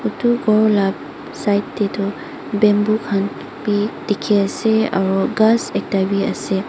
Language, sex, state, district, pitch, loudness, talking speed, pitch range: Nagamese, female, Mizoram, Aizawl, 205 Hz, -18 LUFS, 145 wpm, 200-215 Hz